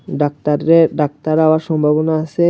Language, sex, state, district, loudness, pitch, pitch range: Bengali, male, Tripura, Unakoti, -15 LUFS, 155 Hz, 150-160 Hz